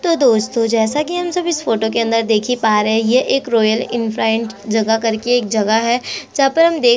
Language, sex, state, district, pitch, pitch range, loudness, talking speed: Hindi, female, Chhattisgarh, Korba, 230 Hz, 220-255 Hz, -16 LUFS, 240 wpm